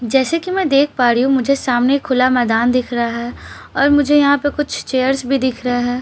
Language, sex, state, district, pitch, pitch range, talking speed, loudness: Hindi, female, Bihar, Patna, 260 Hz, 245-280 Hz, 260 wpm, -16 LUFS